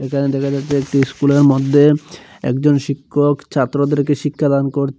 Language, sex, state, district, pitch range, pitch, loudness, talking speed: Bengali, male, Assam, Hailakandi, 140-145 Hz, 140 Hz, -16 LUFS, 130 wpm